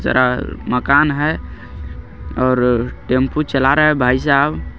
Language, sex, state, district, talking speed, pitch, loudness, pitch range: Hindi, male, Jharkhand, Garhwa, 115 wpm, 125 Hz, -16 LUFS, 80-140 Hz